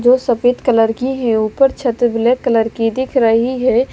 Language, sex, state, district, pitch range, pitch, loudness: Hindi, female, Bihar, West Champaran, 225-255 Hz, 245 Hz, -15 LUFS